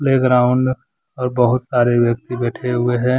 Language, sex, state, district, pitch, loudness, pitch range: Hindi, male, Jharkhand, Deoghar, 125 Hz, -17 LUFS, 120-130 Hz